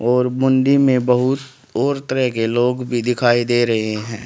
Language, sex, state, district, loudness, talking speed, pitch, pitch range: Hindi, male, Haryana, Rohtak, -17 LUFS, 185 wpm, 125 Hz, 120-130 Hz